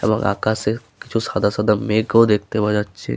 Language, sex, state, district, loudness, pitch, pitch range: Bengali, male, West Bengal, Paschim Medinipur, -19 LUFS, 105 Hz, 105-110 Hz